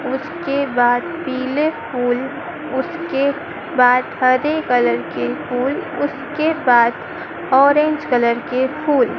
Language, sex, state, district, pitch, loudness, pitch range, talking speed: Hindi, female, Madhya Pradesh, Dhar, 270 Hz, -18 LUFS, 250-300 Hz, 105 wpm